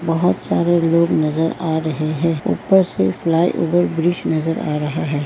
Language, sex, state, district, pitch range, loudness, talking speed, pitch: Hindi, female, Uttar Pradesh, Varanasi, 155-170 Hz, -18 LUFS, 170 wpm, 165 Hz